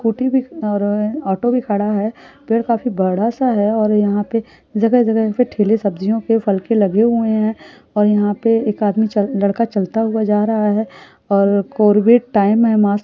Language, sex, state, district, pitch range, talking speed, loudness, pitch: Hindi, female, Rajasthan, Churu, 205-230 Hz, 185 wpm, -16 LUFS, 215 Hz